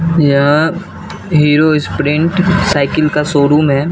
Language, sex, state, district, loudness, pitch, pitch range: Hindi, male, Bihar, Katihar, -12 LUFS, 150 Hz, 145-165 Hz